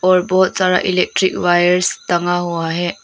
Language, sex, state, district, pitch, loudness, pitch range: Hindi, female, Arunachal Pradesh, Lower Dibang Valley, 180 Hz, -16 LUFS, 175-185 Hz